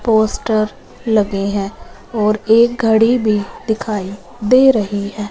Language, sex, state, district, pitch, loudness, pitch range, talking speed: Hindi, female, Punjab, Fazilka, 215 Hz, -15 LUFS, 205-225 Hz, 125 wpm